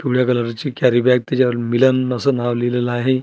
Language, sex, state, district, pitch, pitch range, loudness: Marathi, male, Maharashtra, Washim, 125 Hz, 120-130 Hz, -17 LUFS